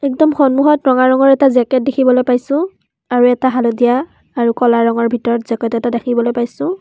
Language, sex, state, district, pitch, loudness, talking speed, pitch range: Assamese, female, Assam, Kamrup Metropolitan, 250 Hz, -14 LUFS, 165 wpm, 235-275 Hz